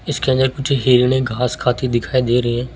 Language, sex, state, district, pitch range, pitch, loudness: Hindi, male, Rajasthan, Jaipur, 120-130 Hz, 125 Hz, -17 LUFS